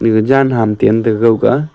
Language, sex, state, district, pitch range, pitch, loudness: Wancho, male, Arunachal Pradesh, Longding, 110-135 Hz, 115 Hz, -12 LUFS